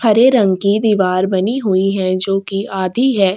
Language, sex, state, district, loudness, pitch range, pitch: Hindi, female, Chhattisgarh, Sukma, -15 LUFS, 190-220 Hz, 195 Hz